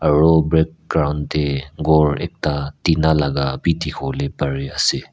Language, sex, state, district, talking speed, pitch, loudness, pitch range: Nagamese, male, Nagaland, Kohima, 130 wpm, 75 Hz, -19 LUFS, 70-80 Hz